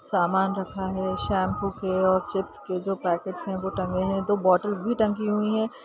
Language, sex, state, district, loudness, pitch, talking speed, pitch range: Hindi, female, Bihar, Saran, -26 LUFS, 190 Hz, 225 wpm, 185-205 Hz